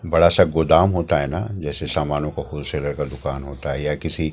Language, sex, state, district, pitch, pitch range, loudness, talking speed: Hindi, male, Delhi, New Delhi, 75 Hz, 70-85 Hz, -21 LUFS, 220 wpm